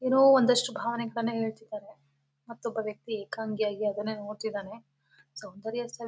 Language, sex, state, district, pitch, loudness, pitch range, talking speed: Kannada, female, Karnataka, Mysore, 220 Hz, -29 LUFS, 210-235 Hz, 120 wpm